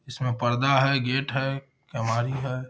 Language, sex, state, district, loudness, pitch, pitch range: Hindi, male, Bihar, Gaya, -25 LUFS, 135 Hz, 125-135 Hz